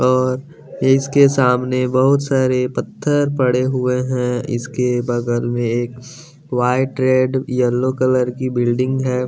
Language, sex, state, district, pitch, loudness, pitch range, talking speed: Hindi, male, Bihar, West Champaran, 130 Hz, -17 LUFS, 125-130 Hz, 130 wpm